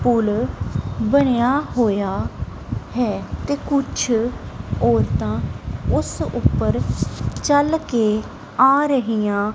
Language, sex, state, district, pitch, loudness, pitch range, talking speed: Punjabi, female, Punjab, Kapurthala, 230 Hz, -20 LUFS, 205-275 Hz, 80 wpm